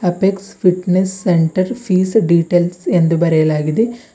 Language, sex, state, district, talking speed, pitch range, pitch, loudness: Kannada, female, Karnataka, Bidar, 100 wpm, 170-190 Hz, 180 Hz, -15 LUFS